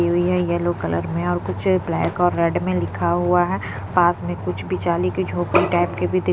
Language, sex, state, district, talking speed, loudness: Hindi, female, Punjab, Pathankot, 245 wpm, -21 LUFS